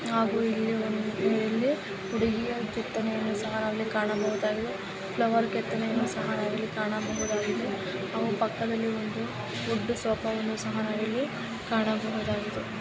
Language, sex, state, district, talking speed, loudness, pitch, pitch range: Kannada, female, Karnataka, Dharwad, 115 wpm, -29 LUFS, 220 Hz, 210-225 Hz